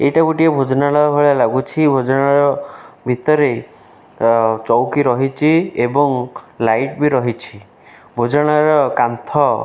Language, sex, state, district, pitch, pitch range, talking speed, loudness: Odia, male, Odisha, Khordha, 140 Hz, 125-150 Hz, 105 wpm, -15 LUFS